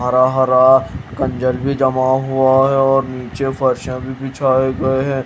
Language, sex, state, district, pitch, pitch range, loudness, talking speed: Hindi, male, Haryana, Jhajjar, 130 Hz, 130-135 Hz, -15 LUFS, 160 wpm